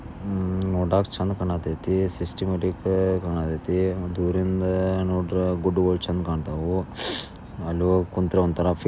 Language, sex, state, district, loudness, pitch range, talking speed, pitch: Kannada, male, Karnataka, Belgaum, -25 LUFS, 85-95 Hz, 115 wpm, 90 Hz